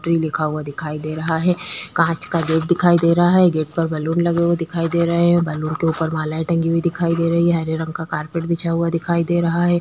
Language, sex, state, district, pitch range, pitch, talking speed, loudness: Hindi, female, Chhattisgarh, Korba, 160-170 Hz, 165 Hz, 265 wpm, -19 LUFS